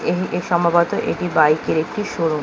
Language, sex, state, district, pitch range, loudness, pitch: Bengali, female, West Bengal, Kolkata, 160-175 Hz, -19 LUFS, 170 Hz